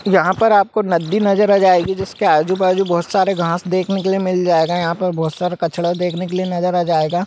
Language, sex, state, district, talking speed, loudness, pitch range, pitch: Hindi, male, Bihar, Bhagalpur, 230 wpm, -16 LUFS, 170-190 Hz, 180 Hz